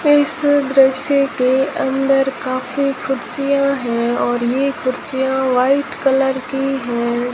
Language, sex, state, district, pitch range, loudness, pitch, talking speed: Hindi, female, Rajasthan, Jaisalmer, 255-275 Hz, -17 LUFS, 270 Hz, 115 wpm